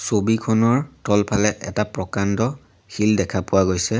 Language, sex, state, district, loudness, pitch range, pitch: Assamese, male, Assam, Sonitpur, -20 LUFS, 100-115 Hz, 105 Hz